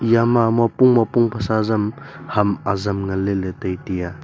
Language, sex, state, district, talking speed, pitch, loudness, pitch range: Wancho, male, Arunachal Pradesh, Longding, 155 wpm, 110 Hz, -19 LUFS, 95-115 Hz